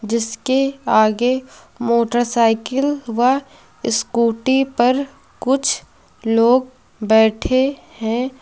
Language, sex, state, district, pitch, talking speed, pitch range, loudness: Hindi, female, Uttar Pradesh, Lucknow, 245 Hz, 70 wpm, 230-265 Hz, -18 LUFS